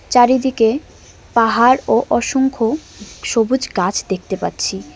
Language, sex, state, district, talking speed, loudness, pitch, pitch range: Bengali, male, West Bengal, Cooch Behar, 95 wpm, -16 LUFS, 235 Hz, 200-260 Hz